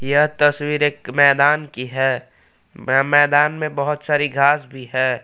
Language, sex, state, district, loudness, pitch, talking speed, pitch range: Hindi, male, Jharkhand, Palamu, -18 LUFS, 145 Hz, 160 wpm, 130-150 Hz